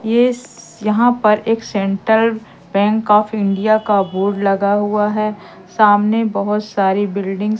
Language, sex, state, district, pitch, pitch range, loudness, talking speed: Hindi, female, Madhya Pradesh, Katni, 210 Hz, 200-220 Hz, -16 LUFS, 140 wpm